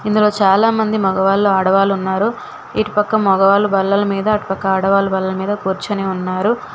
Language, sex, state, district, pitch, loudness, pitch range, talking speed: Telugu, female, Telangana, Hyderabad, 195 Hz, -16 LUFS, 190-210 Hz, 150 wpm